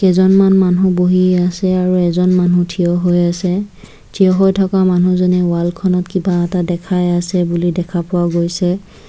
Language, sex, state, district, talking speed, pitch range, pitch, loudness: Assamese, female, Assam, Kamrup Metropolitan, 160 wpm, 175-185 Hz, 180 Hz, -14 LUFS